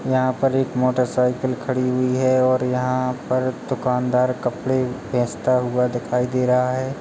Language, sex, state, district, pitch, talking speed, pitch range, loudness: Hindi, male, Uttar Pradesh, Jalaun, 125 Hz, 145 wpm, 125-130 Hz, -21 LUFS